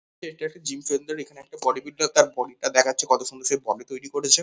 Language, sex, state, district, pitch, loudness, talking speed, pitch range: Bengali, male, West Bengal, Kolkata, 140 Hz, -24 LUFS, 245 wpm, 130-155 Hz